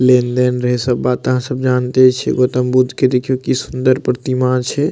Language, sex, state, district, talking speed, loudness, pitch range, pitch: Maithili, male, Bihar, Madhepura, 185 wpm, -15 LUFS, 125-130 Hz, 125 Hz